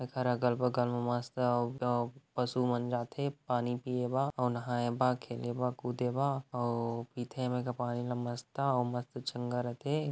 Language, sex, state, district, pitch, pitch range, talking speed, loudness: Chhattisgarhi, male, Chhattisgarh, Rajnandgaon, 125 Hz, 120-125 Hz, 180 wpm, -34 LUFS